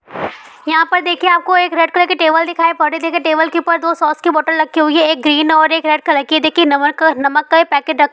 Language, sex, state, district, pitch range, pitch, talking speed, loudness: Hindi, female, Bihar, Sitamarhi, 310-335 Hz, 320 Hz, 290 wpm, -13 LUFS